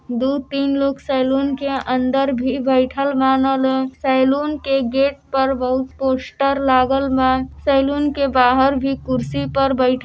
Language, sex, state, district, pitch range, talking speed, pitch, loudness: Hindi, female, Uttar Pradesh, Deoria, 260-275 Hz, 155 wpm, 265 Hz, -18 LUFS